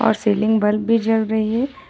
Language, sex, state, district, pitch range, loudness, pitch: Hindi, female, Jharkhand, Ranchi, 215-225 Hz, -19 LUFS, 220 Hz